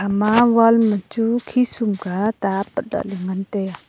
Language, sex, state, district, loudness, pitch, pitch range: Wancho, female, Arunachal Pradesh, Longding, -19 LUFS, 210 Hz, 195-230 Hz